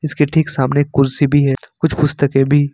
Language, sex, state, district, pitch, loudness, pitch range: Hindi, male, Jharkhand, Ranchi, 145 Hz, -15 LUFS, 135-150 Hz